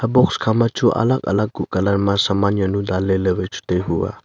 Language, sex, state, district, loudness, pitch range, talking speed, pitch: Wancho, male, Arunachal Pradesh, Longding, -19 LUFS, 95-105 Hz, 225 wpm, 100 Hz